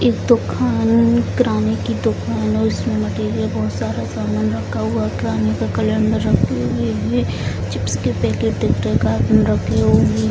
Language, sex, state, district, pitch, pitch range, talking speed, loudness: Hindi, female, Bihar, Jamui, 110 Hz, 105-110 Hz, 115 wpm, -18 LUFS